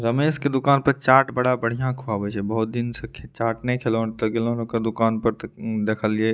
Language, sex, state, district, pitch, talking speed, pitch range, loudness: Maithili, male, Bihar, Madhepura, 115 Hz, 235 wpm, 110-125 Hz, -23 LUFS